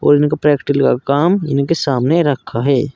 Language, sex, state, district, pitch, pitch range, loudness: Hindi, male, Uttar Pradesh, Saharanpur, 145 Hz, 140-150 Hz, -15 LUFS